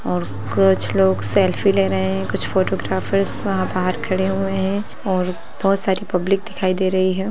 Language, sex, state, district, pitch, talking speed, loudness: Hindi, female, Bihar, Lakhisarai, 180 Hz, 180 wpm, -18 LUFS